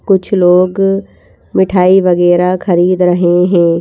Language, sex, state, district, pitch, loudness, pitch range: Hindi, female, Madhya Pradesh, Bhopal, 180 Hz, -10 LUFS, 175-190 Hz